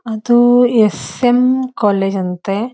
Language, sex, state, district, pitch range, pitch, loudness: Kannada, female, Karnataka, Dharwad, 195-245 Hz, 220 Hz, -14 LUFS